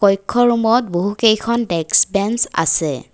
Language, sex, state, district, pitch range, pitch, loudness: Assamese, female, Assam, Kamrup Metropolitan, 200-235 Hz, 220 Hz, -16 LUFS